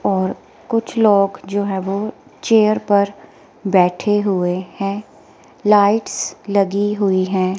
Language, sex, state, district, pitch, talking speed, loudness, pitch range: Hindi, female, Himachal Pradesh, Shimla, 200 Hz, 120 wpm, -17 LUFS, 190-210 Hz